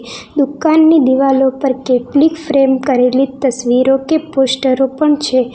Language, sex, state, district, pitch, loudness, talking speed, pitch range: Gujarati, female, Gujarat, Valsad, 270 Hz, -13 LUFS, 120 wpm, 255-290 Hz